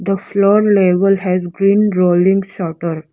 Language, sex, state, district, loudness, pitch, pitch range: English, female, Arunachal Pradesh, Lower Dibang Valley, -14 LUFS, 195 Hz, 180-200 Hz